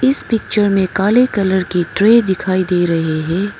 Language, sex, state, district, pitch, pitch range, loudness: Hindi, female, Arunachal Pradesh, Papum Pare, 190 Hz, 180-215 Hz, -15 LUFS